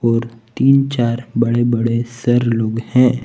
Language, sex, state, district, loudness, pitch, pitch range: Hindi, male, Jharkhand, Palamu, -16 LUFS, 120 Hz, 115-125 Hz